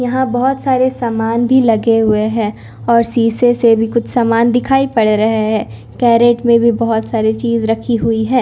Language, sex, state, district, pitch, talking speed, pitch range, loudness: Hindi, female, Punjab, Kapurthala, 230 Hz, 190 wpm, 225-245 Hz, -13 LUFS